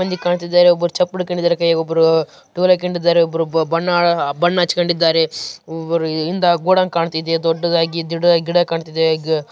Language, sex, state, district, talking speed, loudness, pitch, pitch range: Kannada, male, Karnataka, Raichur, 130 wpm, -16 LUFS, 170 Hz, 165-175 Hz